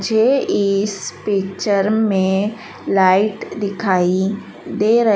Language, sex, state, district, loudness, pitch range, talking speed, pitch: Hindi, female, Madhya Pradesh, Dhar, -18 LUFS, 190-215 Hz, 95 wpm, 200 Hz